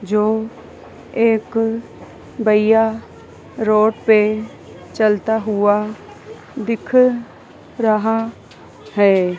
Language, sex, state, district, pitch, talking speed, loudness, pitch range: Hindi, female, Madhya Pradesh, Dhar, 220 Hz, 65 wpm, -17 LUFS, 210-225 Hz